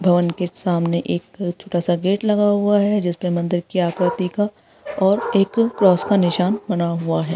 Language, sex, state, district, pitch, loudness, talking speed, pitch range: Hindi, female, Jharkhand, Sahebganj, 180 Hz, -19 LUFS, 195 wpm, 175-205 Hz